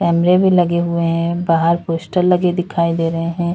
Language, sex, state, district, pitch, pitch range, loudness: Hindi, female, Uttar Pradesh, Lalitpur, 170 Hz, 165-175 Hz, -16 LUFS